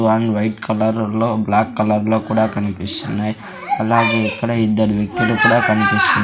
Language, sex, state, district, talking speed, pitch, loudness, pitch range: Telugu, male, Andhra Pradesh, Sri Satya Sai, 155 wpm, 110 Hz, -17 LUFS, 105-110 Hz